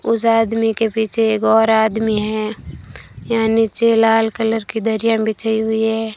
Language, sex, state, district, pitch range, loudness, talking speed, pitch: Hindi, female, Rajasthan, Bikaner, 220-225 Hz, -16 LUFS, 165 wpm, 225 Hz